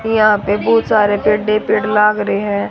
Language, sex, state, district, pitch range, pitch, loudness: Hindi, female, Haryana, Rohtak, 205-215 Hz, 210 Hz, -14 LUFS